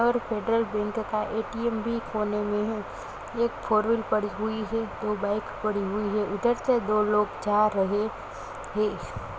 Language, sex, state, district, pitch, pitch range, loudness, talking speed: Hindi, female, Bihar, Kishanganj, 215 Hz, 210-230 Hz, -27 LUFS, 165 wpm